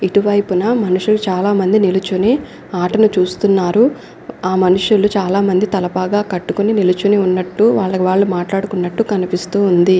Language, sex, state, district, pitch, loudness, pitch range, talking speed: Telugu, female, Andhra Pradesh, Anantapur, 195 Hz, -15 LUFS, 185-205 Hz, 120 wpm